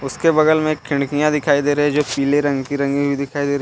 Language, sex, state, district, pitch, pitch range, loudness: Hindi, male, Jharkhand, Deoghar, 145 Hz, 140-150 Hz, -18 LUFS